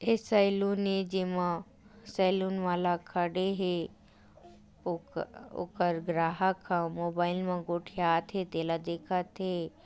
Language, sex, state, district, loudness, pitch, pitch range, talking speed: Chhattisgarhi, female, Chhattisgarh, Raigarh, -31 LUFS, 180 Hz, 170-190 Hz, 110 wpm